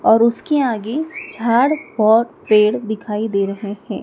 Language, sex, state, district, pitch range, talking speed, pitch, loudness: Hindi, female, Madhya Pradesh, Dhar, 210-250 Hz, 150 wpm, 225 Hz, -17 LUFS